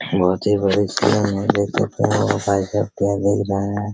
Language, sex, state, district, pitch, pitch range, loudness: Hindi, male, Bihar, Araria, 100 Hz, 100-105 Hz, -19 LUFS